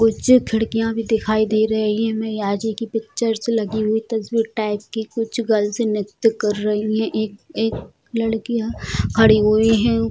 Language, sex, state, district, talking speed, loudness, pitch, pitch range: Hindi, female, Bihar, Bhagalpur, 190 wpm, -20 LUFS, 220 Hz, 215-225 Hz